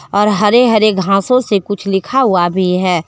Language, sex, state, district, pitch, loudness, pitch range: Hindi, female, Jharkhand, Deoghar, 200 Hz, -12 LUFS, 185-215 Hz